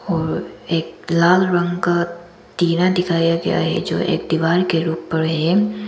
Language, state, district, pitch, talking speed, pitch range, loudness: Hindi, Arunachal Pradesh, Lower Dibang Valley, 170 Hz, 155 wpm, 165-175 Hz, -18 LUFS